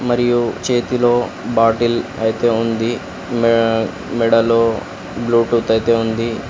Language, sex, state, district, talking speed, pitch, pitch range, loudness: Telugu, female, Telangana, Komaram Bheem, 90 wpm, 115 Hz, 115-120 Hz, -17 LUFS